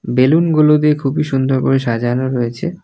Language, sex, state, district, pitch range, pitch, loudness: Bengali, male, West Bengal, Alipurduar, 125-150 Hz, 135 Hz, -15 LUFS